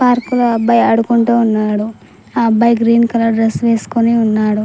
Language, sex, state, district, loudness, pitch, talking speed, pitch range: Telugu, female, Telangana, Mahabubabad, -13 LUFS, 230 Hz, 155 wpm, 225-235 Hz